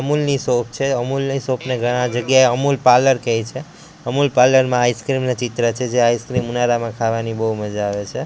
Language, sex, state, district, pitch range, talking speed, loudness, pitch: Gujarati, male, Gujarat, Gandhinagar, 120-130 Hz, 210 wpm, -18 LUFS, 125 Hz